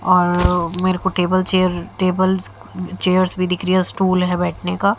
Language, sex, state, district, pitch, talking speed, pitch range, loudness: Hindi, female, Haryana, Jhajjar, 185 Hz, 170 wpm, 180-185 Hz, -18 LUFS